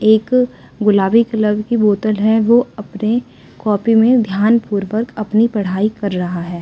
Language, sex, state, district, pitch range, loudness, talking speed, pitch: Hindi, female, Delhi, New Delhi, 205-225 Hz, -15 LUFS, 155 wpm, 215 Hz